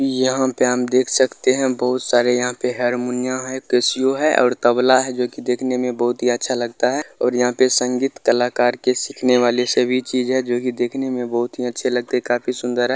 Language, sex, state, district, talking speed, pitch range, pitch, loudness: Hindi, male, Bihar, Lakhisarai, 210 wpm, 125-130 Hz, 125 Hz, -19 LUFS